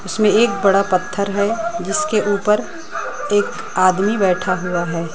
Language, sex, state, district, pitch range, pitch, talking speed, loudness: Hindi, female, Chhattisgarh, Raipur, 185-210 Hz, 200 Hz, 140 wpm, -18 LUFS